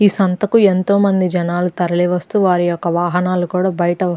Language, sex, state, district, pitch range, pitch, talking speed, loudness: Telugu, female, Andhra Pradesh, Krishna, 175-190 Hz, 180 Hz, 185 wpm, -16 LUFS